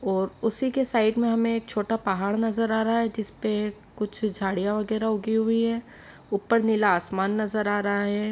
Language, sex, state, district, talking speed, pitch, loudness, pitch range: Hindi, female, Uttar Pradesh, Etah, 185 wpm, 215 Hz, -25 LUFS, 205-225 Hz